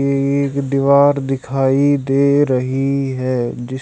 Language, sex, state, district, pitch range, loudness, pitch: Hindi, male, Haryana, Charkhi Dadri, 130-140 Hz, -16 LUFS, 135 Hz